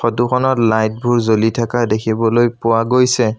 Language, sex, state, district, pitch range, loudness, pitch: Assamese, male, Assam, Sonitpur, 110-120 Hz, -15 LUFS, 115 Hz